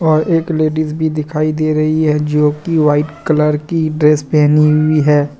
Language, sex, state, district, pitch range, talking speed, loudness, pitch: Hindi, male, Jharkhand, Deoghar, 150-155 Hz, 190 wpm, -14 LUFS, 155 Hz